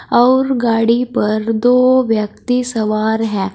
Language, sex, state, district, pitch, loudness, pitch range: Hindi, female, Uttar Pradesh, Saharanpur, 230 Hz, -14 LUFS, 220-250 Hz